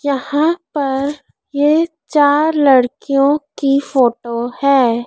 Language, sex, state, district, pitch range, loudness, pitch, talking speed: Hindi, female, Madhya Pradesh, Dhar, 265-295 Hz, -15 LUFS, 280 Hz, 95 wpm